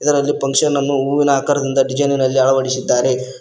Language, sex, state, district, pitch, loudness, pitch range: Kannada, male, Karnataka, Koppal, 140 Hz, -16 LUFS, 130-145 Hz